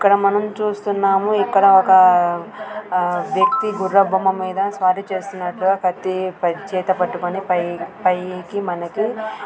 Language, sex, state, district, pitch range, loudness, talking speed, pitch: Telugu, female, Telangana, Karimnagar, 180-200 Hz, -18 LUFS, 120 wpm, 190 Hz